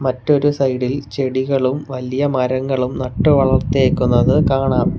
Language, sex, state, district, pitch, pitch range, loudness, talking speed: Malayalam, male, Kerala, Kollam, 130 Hz, 130-140 Hz, -17 LUFS, 95 wpm